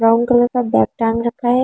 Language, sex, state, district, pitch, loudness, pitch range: Hindi, female, Delhi, New Delhi, 235 Hz, -16 LUFS, 225-245 Hz